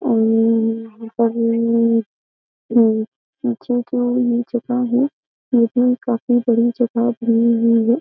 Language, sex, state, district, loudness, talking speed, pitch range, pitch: Hindi, female, Uttar Pradesh, Jyotiba Phule Nagar, -18 LUFS, 95 wpm, 230-245 Hz, 235 Hz